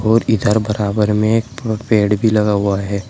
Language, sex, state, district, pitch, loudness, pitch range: Hindi, male, Uttar Pradesh, Shamli, 105 Hz, -16 LUFS, 105-110 Hz